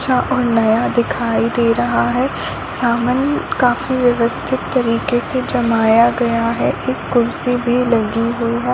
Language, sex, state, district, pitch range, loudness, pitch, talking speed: Hindi, female, Chhattisgarh, Balrampur, 230-250 Hz, -16 LUFS, 240 Hz, 150 wpm